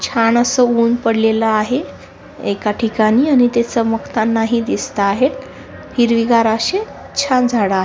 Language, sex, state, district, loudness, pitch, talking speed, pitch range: Marathi, female, Maharashtra, Sindhudurg, -15 LUFS, 230 Hz, 145 wpm, 220-245 Hz